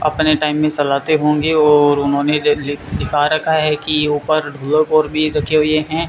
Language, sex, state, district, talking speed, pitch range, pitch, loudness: Hindi, male, Rajasthan, Bikaner, 170 wpm, 145-155 Hz, 150 Hz, -15 LUFS